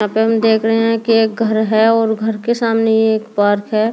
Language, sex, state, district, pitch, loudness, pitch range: Hindi, female, Delhi, New Delhi, 220 Hz, -14 LUFS, 220-225 Hz